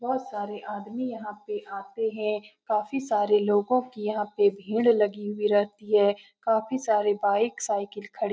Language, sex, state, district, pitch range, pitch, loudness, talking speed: Hindi, female, Bihar, Saran, 205-220 Hz, 210 Hz, -26 LUFS, 175 wpm